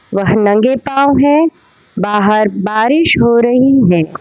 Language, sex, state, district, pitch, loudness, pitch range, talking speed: Hindi, female, Gujarat, Valsad, 235 Hz, -11 LUFS, 205-275 Hz, 130 wpm